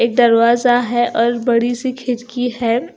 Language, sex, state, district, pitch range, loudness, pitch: Hindi, female, Punjab, Kapurthala, 235-245 Hz, -16 LUFS, 240 Hz